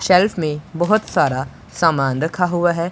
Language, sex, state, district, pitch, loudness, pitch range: Hindi, male, Punjab, Pathankot, 175 Hz, -18 LUFS, 160-180 Hz